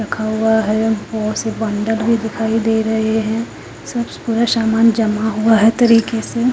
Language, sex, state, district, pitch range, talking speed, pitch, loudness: Hindi, female, Haryana, Charkhi Dadri, 220-230 Hz, 185 wpm, 220 Hz, -16 LUFS